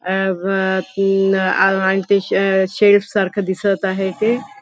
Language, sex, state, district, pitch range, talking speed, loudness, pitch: Marathi, female, Maharashtra, Nagpur, 190-200 Hz, 115 wpm, -17 LUFS, 195 Hz